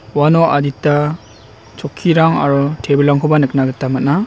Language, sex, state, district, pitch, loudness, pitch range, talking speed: Garo, male, Meghalaya, West Garo Hills, 145 Hz, -14 LUFS, 135-150 Hz, 110 wpm